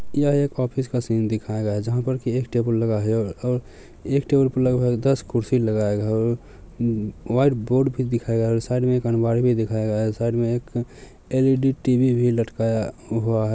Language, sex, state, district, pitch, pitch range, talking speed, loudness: Maithili, male, Bihar, Samastipur, 120 Hz, 110-130 Hz, 215 wpm, -22 LUFS